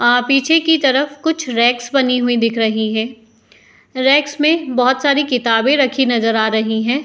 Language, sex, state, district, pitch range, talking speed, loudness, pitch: Hindi, female, Uttar Pradesh, Etah, 230-280 Hz, 180 wpm, -15 LUFS, 250 Hz